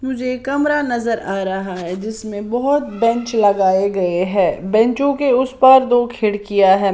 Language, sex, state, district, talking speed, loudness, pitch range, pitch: Hindi, female, Maharashtra, Washim, 165 wpm, -16 LUFS, 195-255 Hz, 220 Hz